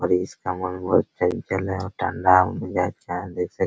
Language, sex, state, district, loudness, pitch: Hindi, male, Bihar, Araria, -23 LUFS, 90 Hz